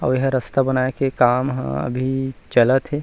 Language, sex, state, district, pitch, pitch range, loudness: Chhattisgarhi, male, Chhattisgarh, Rajnandgaon, 130 Hz, 125-135 Hz, -20 LUFS